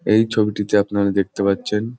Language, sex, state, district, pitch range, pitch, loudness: Bengali, male, West Bengal, Jhargram, 100-110 Hz, 105 Hz, -19 LUFS